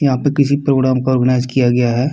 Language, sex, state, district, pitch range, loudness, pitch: Hindi, male, Bihar, Kishanganj, 125-140 Hz, -15 LUFS, 130 Hz